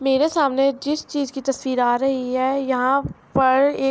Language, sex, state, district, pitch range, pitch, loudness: Urdu, female, Andhra Pradesh, Anantapur, 260-280 Hz, 270 Hz, -20 LUFS